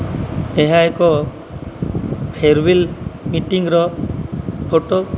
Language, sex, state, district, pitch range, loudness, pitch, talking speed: Odia, male, Odisha, Malkangiri, 155-170 Hz, -17 LUFS, 165 Hz, 80 wpm